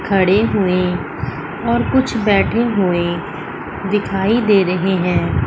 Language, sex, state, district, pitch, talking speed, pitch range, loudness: Hindi, female, Chandigarh, Chandigarh, 195 Hz, 110 wpm, 180-210 Hz, -17 LUFS